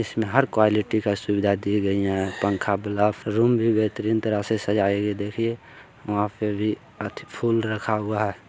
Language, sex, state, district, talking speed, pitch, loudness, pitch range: Hindi, male, Bihar, Bhagalpur, 190 wpm, 105 Hz, -24 LUFS, 100-110 Hz